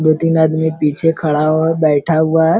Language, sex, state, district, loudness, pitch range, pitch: Hindi, male, Bihar, Araria, -14 LUFS, 155-165 Hz, 160 Hz